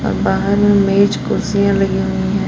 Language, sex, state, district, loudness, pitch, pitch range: Hindi, female, Jharkhand, Palamu, -15 LUFS, 200 Hz, 195-200 Hz